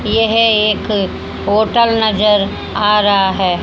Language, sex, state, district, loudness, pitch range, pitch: Hindi, female, Haryana, Charkhi Dadri, -13 LUFS, 200-220 Hz, 210 Hz